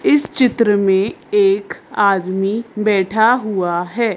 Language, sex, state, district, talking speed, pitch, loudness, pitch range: Hindi, female, Madhya Pradesh, Bhopal, 115 wpm, 215 Hz, -16 LUFS, 195-245 Hz